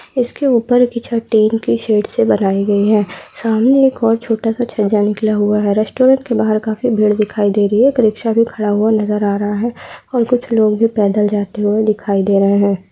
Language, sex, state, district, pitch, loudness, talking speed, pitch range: Hindi, female, Uttar Pradesh, Gorakhpur, 215 Hz, -14 LUFS, 230 wpm, 205-230 Hz